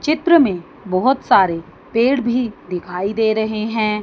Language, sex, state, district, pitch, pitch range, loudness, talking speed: Hindi, female, Chandigarh, Chandigarh, 220 Hz, 185-250 Hz, -17 LUFS, 150 wpm